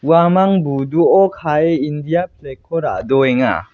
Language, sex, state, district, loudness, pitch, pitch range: Garo, male, Meghalaya, West Garo Hills, -15 LUFS, 155 Hz, 135-170 Hz